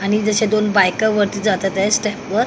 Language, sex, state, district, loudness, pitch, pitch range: Marathi, female, Maharashtra, Mumbai Suburban, -17 LUFS, 210 Hz, 200-215 Hz